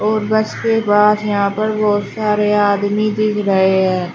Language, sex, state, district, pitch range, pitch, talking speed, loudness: Hindi, female, Uttar Pradesh, Shamli, 200-215 Hz, 210 Hz, 175 wpm, -15 LUFS